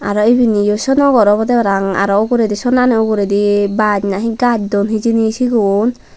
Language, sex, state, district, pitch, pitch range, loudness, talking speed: Chakma, female, Tripura, Dhalai, 215 Hz, 205-235 Hz, -13 LUFS, 155 wpm